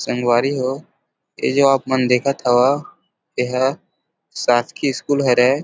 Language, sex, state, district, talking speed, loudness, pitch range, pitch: Chhattisgarhi, male, Chhattisgarh, Rajnandgaon, 140 wpm, -18 LUFS, 125-140 Hz, 130 Hz